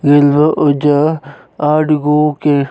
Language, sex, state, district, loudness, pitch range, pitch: Bhojpuri, male, Uttar Pradesh, Gorakhpur, -12 LUFS, 145-150 Hz, 150 Hz